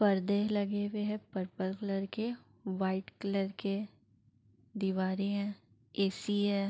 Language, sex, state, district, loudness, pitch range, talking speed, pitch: Hindi, female, Uttar Pradesh, Jalaun, -35 LUFS, 190-205 Hz, 135 wpm, 200 Hz